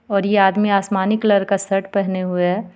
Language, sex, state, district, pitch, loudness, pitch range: Hindi, female, Jharkhand, Ranchi, 195 Hz, -18 LUFS, 190-200 Hz